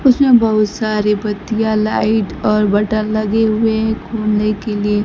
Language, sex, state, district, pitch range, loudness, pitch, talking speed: Hindi, female, Bihar, Kaimur, 210-220 Hz, -15 LUFS, 215 Hz, 155 wpm